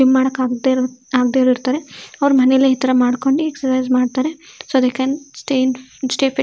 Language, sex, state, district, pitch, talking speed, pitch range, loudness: Kannada, female, Karnataka, Shimoga, 260 Hz, 150 wpm, 255-270 Hz, -17 LUFS